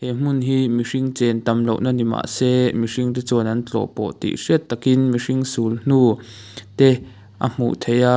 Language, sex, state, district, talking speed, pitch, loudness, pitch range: Mizo, male, Mizoram, Aizawl, 185 wpm, 125 Hz, -20 LUFS, 115-130 Hz